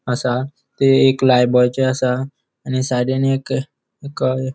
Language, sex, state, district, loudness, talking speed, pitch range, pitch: Konkani, male, Goa, North and South Goa, -17 LUFS, 130 wpm, 125-135 Hz, 130 Hz